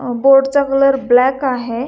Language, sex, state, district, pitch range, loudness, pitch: Marathi, female, Maharashtra, Dhule, 245-275 Hz, -13 LUFS, 265 Hz